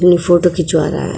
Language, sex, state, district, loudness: Hindi, female, Uttar Pradesh, Etah, -13 LUFS